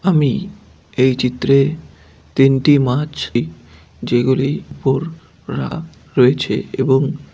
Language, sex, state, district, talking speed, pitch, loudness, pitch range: Bengali, male, West Bengal, Dakshin Dinajpur, 90 wpm, 135 Hz, -17 LUFS, 125-145 Hz